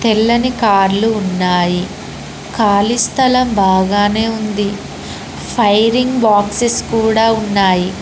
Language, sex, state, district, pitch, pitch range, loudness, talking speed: Telugu, female, Telangana, Mahabubabad, 215 Hz, 200-230 Hz, -13 LUFS, 80 wpm